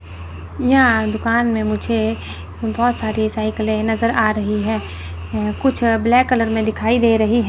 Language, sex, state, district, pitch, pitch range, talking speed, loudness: Hindi, female, Chandigarh, Chandigarh, 220 Hz, 215-230 Hz, 150 wpm, -18 LUFS